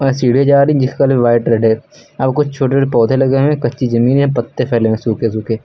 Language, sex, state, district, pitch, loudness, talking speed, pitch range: Hindi, male, Uttar Pradesh, Lucknow, 130 Hz, -13 LUFS, 300 wpm, 115-135 Hz